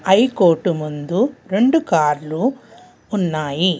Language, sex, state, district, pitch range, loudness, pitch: Telugu, female, Telangana, Hyderabad, 155-245 Hz, -18 LUFS, 185 Hz